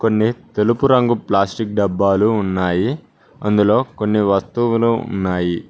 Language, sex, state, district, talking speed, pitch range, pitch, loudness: Telugu, male, Telangana, Mahabubabad, 105 wpm, 100-115 Hz, 105 Hz, -17 LUFS